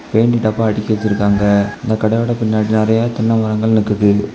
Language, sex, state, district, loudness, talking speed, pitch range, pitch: Tamil, male, Tamil Nadu, Kanyakumari, -15 LUFS, 150 wpm, 105-110 Hz, 110 Hz